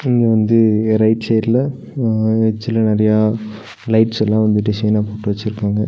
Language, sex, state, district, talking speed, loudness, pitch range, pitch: Tamil, male, Tamil Nadu, Nilgiris, 135 wpm, -16 LUFS, 105-115 Hz, 110 Hz